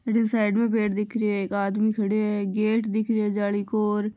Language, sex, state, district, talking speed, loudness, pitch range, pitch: Marwari, female, Rajasthan, Nagaur, 260 wpm, -24 LUFS, 205-220 Hz, 210 Hz